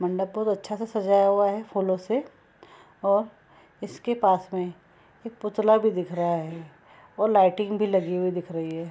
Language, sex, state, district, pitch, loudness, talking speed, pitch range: Hindi, female, Bihar, Gopalganj, 195 Hz, -25 LUFS, 190 wpm, 180-215 Hz